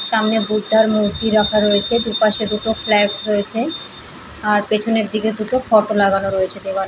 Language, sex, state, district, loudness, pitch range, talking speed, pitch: Bengali, female, West Bengal, Paschim Medinipur, -16 LUFS, 205-220 Hz, 150 wpm, 215 Hz